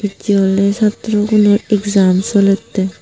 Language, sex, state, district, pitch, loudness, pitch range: Chakma, female, Tripura, Unakoti, 205 Hz, -13 LUFS, 195-210 Hz